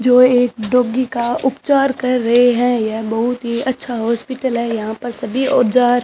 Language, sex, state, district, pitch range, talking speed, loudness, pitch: Hindi, female, Rajasthan, Bikaner, 235-255 Hz, 190 wpm, -16 LUFS, 245 Hz